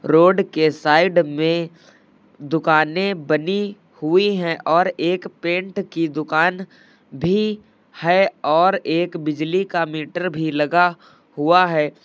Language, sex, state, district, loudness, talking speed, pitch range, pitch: Hindi, male, Uttar Pradesh, Lucknow, -19 LUFS, 120 wpm, 155-185 Hz, 170 Hz